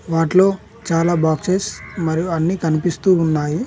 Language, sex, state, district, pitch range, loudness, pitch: Telugu, male, Telangana, Mahabubabad, 160-185 Hz, -18 LUFS, 165 Hz